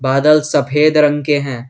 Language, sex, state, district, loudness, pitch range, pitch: Hindi, male, Jharkhand, Garhwa, -13 LUFS, 135-150 Hz, 145 Hz